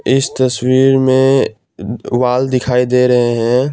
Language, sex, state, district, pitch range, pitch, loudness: Hindi, male, Assam, Kamrup Metropolitan, 125-130 Hz, 130 Hz, -13 LUFS